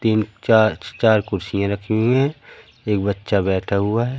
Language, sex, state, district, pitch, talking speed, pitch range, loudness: Hindi, male, Madhya Pradesh, Katni, 110 Hz, 170 wpm, 100-110 Hz, -19 LUFS